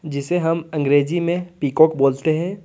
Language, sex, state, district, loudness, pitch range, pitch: Hindi, male, Jharkhand, Deoghar, -19 LUFS, 145-175 Hz, 160 Hz